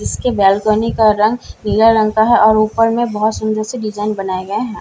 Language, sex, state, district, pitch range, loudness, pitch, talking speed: Hindi, female, Bihar, Katihar, 210-225 Hz, -14 LUFS, 215 Hz, 225 wpm